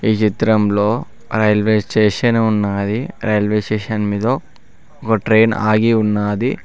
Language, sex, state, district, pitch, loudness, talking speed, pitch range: Telugu, male, Telangana, Mahabubabad, 110 Hz, -16 LUFS, 100 wpm, 105-110 Hz